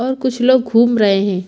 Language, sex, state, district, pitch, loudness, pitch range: Hindi, female, Chhattisgarh, Bilaspur, 235 Hz, -14 LUFS, 200-255 Hz